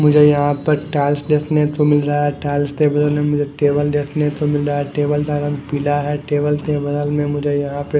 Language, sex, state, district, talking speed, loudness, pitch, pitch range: Hindi, male, Punjab, Fazilka, 245 wpm, -17 LUFS, 145 Hz, 145-150 Hz